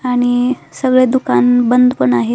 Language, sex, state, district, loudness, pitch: Marathi, female, Maharashtra, Solapur, -13 LUFS, 245 Hz